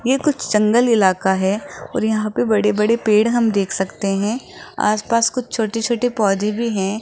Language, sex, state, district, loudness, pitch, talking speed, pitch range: Hindi, female, Rajasthan, Jaipur, -18 LUFS, 220 Hz, 190 wpm, 205-235 Hz